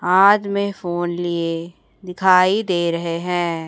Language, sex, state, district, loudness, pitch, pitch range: Hindi, female, Chhattisgarh, Raipur, -18 LUFS, 175 Hz, 170-190 Hz